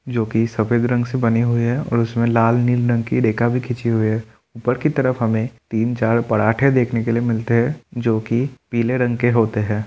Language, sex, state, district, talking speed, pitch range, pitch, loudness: Hindi, male, Bihar, Kishanganj, 230 wpm, 115-120 Hz, 115 Hz, -19 LUFS